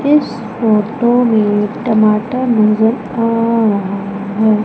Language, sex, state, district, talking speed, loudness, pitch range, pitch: Hindi, female, Madhya Pradesh, Umaria, 105 wpm, -14 LUFS, 210-230 Hz, 220 Hz